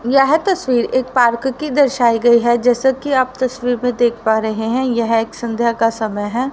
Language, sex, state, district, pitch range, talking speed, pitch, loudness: Hindi, female, Haryana, Rohtak, 230-260 Hz, 210 wpm, 245 Hz, -16 LUFS